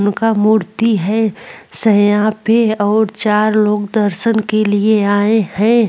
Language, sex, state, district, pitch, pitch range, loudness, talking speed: Hindi, female, Uttar Pradesh, Jalaun, 215 Hz, 205-220 Hz, -14 LUFS, 130 wpm